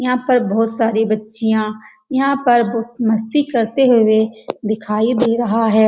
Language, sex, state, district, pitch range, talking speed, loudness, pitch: Hindi, female, Uttar Pradesh, Etah, 220-245 Hz, 155 wpm, -16 LUFS, 225 Hz